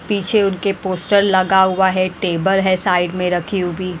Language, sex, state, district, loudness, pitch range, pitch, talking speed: Hindi, female, Himachal Pradesh, Shimla, -16 LUFS, 180-195 Hz, 185 Hz, 165 wpm